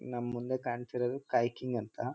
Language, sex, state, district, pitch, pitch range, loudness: Kannada, male, Karnataka, Mysore, 125 Hz, 120-125 Hz, -35 LUFS